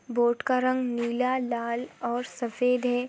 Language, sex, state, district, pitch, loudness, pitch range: Hindi, female, Uttar Pradesh, Etah, 245 Hz, -27 LUFS, 235-255 Hz